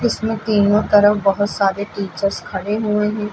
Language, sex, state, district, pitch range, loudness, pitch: Hindi, female, Uttar Pradesh, Lucknow, 200-210 Hz, -18 LUFS, 205 Hz